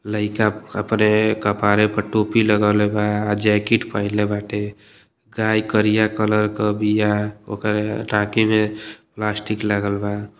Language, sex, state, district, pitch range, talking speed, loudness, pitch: Bhojpuri, male, Uttar Pradesh, Deoria, 105-110 Hz, 120 wpm, -20 LUFS, 105 Hz